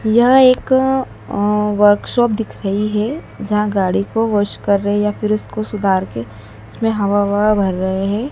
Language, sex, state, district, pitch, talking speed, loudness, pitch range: Hindi, female, Madhya Pradesh, Dhar, 210 Hz, 180 wpm, -16 LUFS, 200-220 Hz